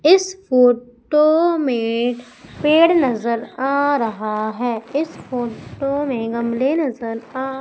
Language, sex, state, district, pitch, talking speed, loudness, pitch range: Hindi, female, Madhya Pradesh, Umaria, 255 Hz, 110 wpm, -19 LUFS, 235-295 Hz